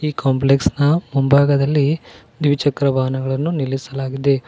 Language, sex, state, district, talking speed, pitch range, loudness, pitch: Kannada, male, Karnataka, Koppal, 95 wpm, 135-145 Hz, -18 LUFS, 140 Hz